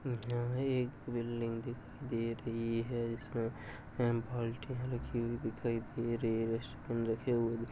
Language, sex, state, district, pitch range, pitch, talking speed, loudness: Hindi, male, Uttar Pradesh, Jalaun, 115-125 Hz, 115 Hz, 155 wpm, -37 LUFS